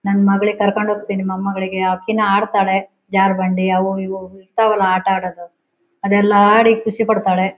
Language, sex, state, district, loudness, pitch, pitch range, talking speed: Kannada, female, Karnataka, Shimoga, -16 LUFS, 195 Hz, 190-210 Hz, 145 wpm